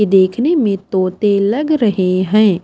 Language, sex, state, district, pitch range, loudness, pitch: Hindi, female, Himachal Pradesh, Shimla, 185-220 Hz, -14 LUFS, 200 Hz